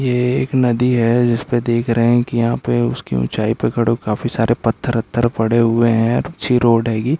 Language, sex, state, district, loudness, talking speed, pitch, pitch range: Hindi, male, Uttarakhand, Uttarkashi, -17 LUFS, 210 wpm, 120 Hz, 115-120 Hz